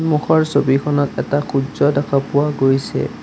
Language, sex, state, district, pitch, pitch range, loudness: Assamese, male, Assam, Sonitpur, 140 Hz, 135-150 Hz, -17 LUFS